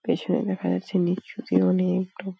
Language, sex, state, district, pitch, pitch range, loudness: Bengali, female, West Bengal, Paschim Medinipur, 185 Hz, 175-190 Hz, -25 LUFS